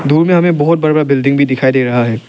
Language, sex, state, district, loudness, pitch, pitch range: Hindi, male, Arunachal Pradesh, Lower Dibang Valley, -12 LUFS, 140 Hz, 130-155 Hz